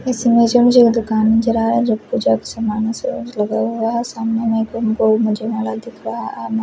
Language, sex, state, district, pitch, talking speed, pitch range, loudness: Hindi, male, Odisha, Khordha, 225 Hz, 155 wpm, 220-235 Hz, -17 LUFS